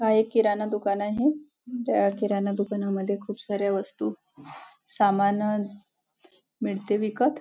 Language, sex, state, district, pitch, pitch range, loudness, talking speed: Marathi, female, Maharashtra, Nagpur, 210 Hz, 200-225 Hz, -26 LUFS, 115 wpm